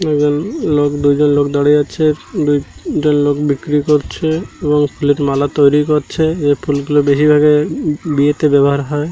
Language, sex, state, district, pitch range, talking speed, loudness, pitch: Bengali, male, Odisha, Malkangiri, 145-150 Hz, 145 wpm, -14 LUFS, 145 Hz